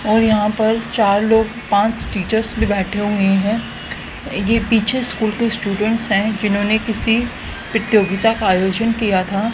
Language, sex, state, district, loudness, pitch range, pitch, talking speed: Hindi, female, Haryana, Rohtak, -17 LUFS, 205-225 Hz, 215 Hz, 150 wpm